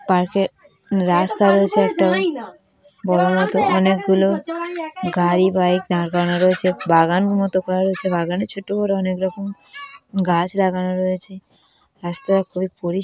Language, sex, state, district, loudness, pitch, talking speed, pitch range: Bengali, female, West Bengal, Jhargram, -19 LUFS, 190 Hz, 125 wpm, 180-195 Hz